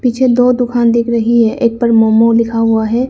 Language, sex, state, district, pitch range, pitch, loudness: Hindi, female, Arunachal Pradesh, Lower Dibang Valley, 230-245 Hz, 235 Hz, -11 LUFS